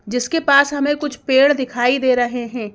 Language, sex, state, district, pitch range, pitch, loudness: Hindi, female, Madhya Pradesh, Bhopal, 245-285 Hz, 260 Hz, -17 LUFS